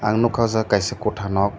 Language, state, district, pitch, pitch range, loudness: Kokborok, Tripura, Dhalai, 105 Hz, 100-115 Hz, -21 LUFS